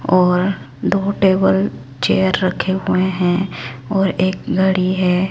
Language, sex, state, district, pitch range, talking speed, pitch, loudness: Hindi, male, Chhattisgarh, Raipur, 180-190 Hz, 125 wpm, 185 Hz, -17 LUFS